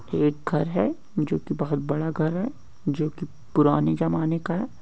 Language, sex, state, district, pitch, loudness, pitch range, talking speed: Hindi, male, Maharashtra, Nagpur, 150 Hz, -25 LUFS, 145-165 Hz, 185 wpm